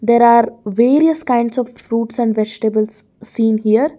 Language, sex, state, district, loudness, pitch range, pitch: English, female, Karnataka, Bangalore, -15 LUFS, 220-245 Hz, 230 Hz